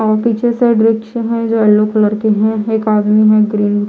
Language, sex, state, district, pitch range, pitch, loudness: Hindi, female, Chhattisgarh, Raipur, 215-225 Hz, 215 Hz, -13 LUFS